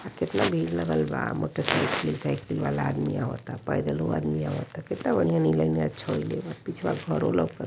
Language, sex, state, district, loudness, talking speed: Hindi, male, Uttar Pradesh, Varanasi, -27 LUFS, 190 wpm